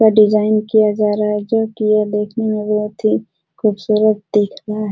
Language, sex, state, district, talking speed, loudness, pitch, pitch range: Hindi, female, Bihar, Supaul, 205 wpm, -16 LUFS, 215 Hz, 210-215 Hz